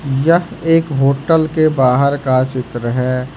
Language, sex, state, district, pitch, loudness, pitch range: Hindi, male, Jharkhand, Ranchi, 140 Hz, -15 LUFS, 130-155 Hz